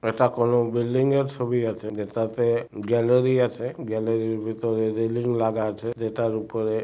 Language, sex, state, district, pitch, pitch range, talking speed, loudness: Bengali, male, West Bengal, Purulia, 115 Hz, 110-120 Hz, 140 wpm, -24 LUFS